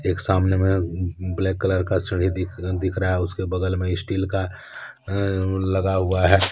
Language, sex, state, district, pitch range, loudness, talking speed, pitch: Hindi, male, Jharkhand, Deoghar, 90-95 Hz, -23 LUFS, 195 wpm, 95 Hz